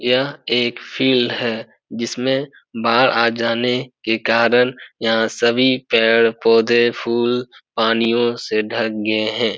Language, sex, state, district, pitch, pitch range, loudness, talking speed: Hindi, male, Bihar, Supaul, 115 Hz, 115-125 Hz, -17 LUFS, 120 wpm